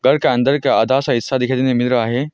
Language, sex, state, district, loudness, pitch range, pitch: Hindi, male, Arunachal Pradesh, Longding, -16 LUFS, 125-135 Hz, 130 Hz